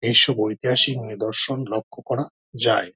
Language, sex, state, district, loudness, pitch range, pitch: Bengali, male, West Bengal, Dakshin Dinajpur, -20 LUFS, 110-130 Hz, 115 Hz